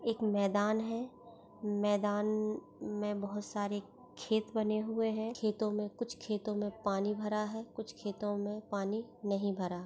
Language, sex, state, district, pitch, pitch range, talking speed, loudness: Hindi, female, Chhattisgarh, Bastar, 210 Hz, 205-220 Hz, 150 wpm, -36 LUFS